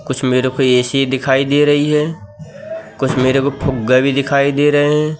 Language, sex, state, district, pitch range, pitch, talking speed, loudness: Hindi, male, Madhya Pradesh, Katni, 130-145 Hz, 140 Hz, 195 wpm, -14 LUFS